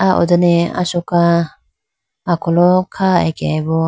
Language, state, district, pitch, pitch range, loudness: Idu Mishmi, Arunachal Pradesh, Lower Dibang Valley, 175 Hz, 170-180 Hz, -15 LUFS